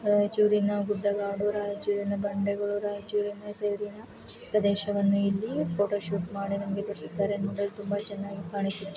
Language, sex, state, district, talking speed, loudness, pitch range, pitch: Kannada, female, Karnataka, Raichur, 115 wpm, -29 LUFS, 200-205 Hz, 205 Hz